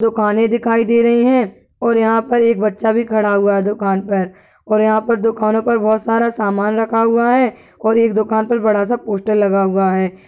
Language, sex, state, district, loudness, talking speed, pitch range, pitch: Hindi, male, Uttar Pradesh, Gorakhpur, -15 LUFS, 215 wpm, 205-230 Hz, 220 Hz